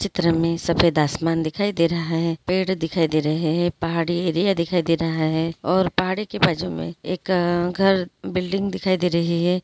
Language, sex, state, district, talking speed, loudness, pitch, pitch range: Hindi, female, Uttarakhand, Uttarkashi, 180 wpm, -22 LUFS, 170 Hz, 165-185 Hz